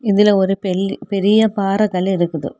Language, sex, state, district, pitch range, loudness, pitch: Tamil, female, Tamil Nadu, Kanyakumari, 190-205 Hz, -16 LUFS, 195 Hz